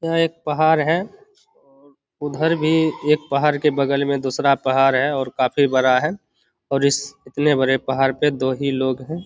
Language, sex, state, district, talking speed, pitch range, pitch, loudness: Hindi, male, Bihar, Begusarai, 180 wpm, 135-155 Hz, 140 Hz, -19 LUFS